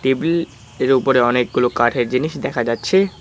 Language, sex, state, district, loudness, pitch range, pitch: Bengali, male, West Bengal, Cooch Behar, -18 LUFS, 120-150 Hz, 125 Hz